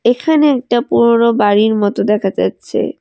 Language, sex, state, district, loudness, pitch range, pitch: Bengali, female, West Bengal, Alipurduar, -13 LUFS, 210-240 Hz, 235 Hz